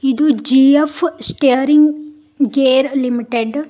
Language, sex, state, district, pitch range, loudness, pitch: Kannada, female, Karnataka, Koppal, 260-300 Hz, -14 LUFS, 275 Hz